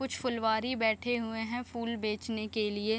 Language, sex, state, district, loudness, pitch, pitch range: Hindi, female, Bihar, Gopalganj, -33 LUFS, 225 Hz, 220-240 Hz